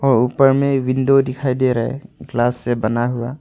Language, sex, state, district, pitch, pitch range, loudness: Hindi, male, Arunachal Pradesh, Longding, 130 Hz, 120-135 Hz, -17 LUFS